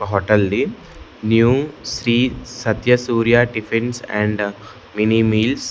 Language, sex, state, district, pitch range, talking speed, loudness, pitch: Telugu, male, Andhra Pradesh, Sri Satya Sai, 105-120 Hz, 115 wpm, -18 LUFS, 115 Hz